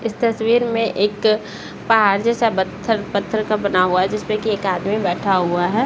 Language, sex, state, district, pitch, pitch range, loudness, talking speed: Hindi, female, Bihar, Saran, 210 Hz, 195-225 Hz, -18 LUFS, 205 wpm